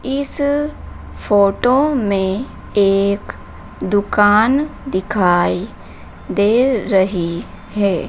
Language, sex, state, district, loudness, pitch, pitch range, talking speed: Hindi, female, Madhya Pradesh, Dhar, -16 LUFS, 205 Hz, 190-255 Hz, 65 wpm